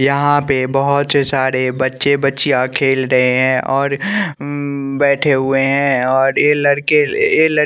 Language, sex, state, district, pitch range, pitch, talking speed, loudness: Hindi, male, Bihar, West Champaran, 130-145 Hz, 140 Hz, 135 wpm, -15 LUFS